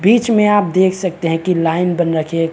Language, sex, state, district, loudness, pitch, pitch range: Hindi, male, Chhattisgarh, Bilaspur, -15 LUFS, 180 Hz, 165-195 Hz